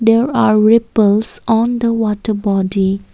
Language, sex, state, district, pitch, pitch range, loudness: English, female, Assam, Kamrup Metropolitan, 220 Hz, 205-230 Hz, -14 LUFS